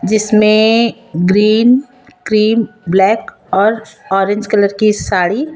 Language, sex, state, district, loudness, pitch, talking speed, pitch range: Hindi, female, Chhattisgarh, Raipur, -12 LUFS, 215 Hz, 95 wpm, 200-225 Hz